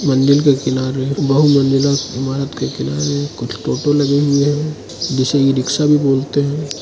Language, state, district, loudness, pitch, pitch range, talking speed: Hindi, Arunachal Pradesh, Lower Dibang Valley, -16 LUFS, 140 Hz, 135-145 Hz, 150 wpm